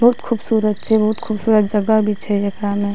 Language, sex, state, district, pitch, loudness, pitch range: Maithili, female, Bihar, Madhepura, 215 Hz, -17 LUFS, 205-220 Hz